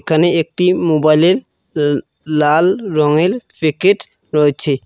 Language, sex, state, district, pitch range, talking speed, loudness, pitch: Bengali, male, West Bengal, Cooch Behar, 150-180 Hz, 100 wpm, -15 LUFS, 155 Hz